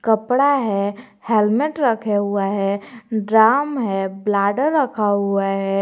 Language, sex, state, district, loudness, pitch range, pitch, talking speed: Hindi, male, Jharkhand, Garhwa, -19 LUFS, 200-240 Hz, 215 Hz, 125 wpm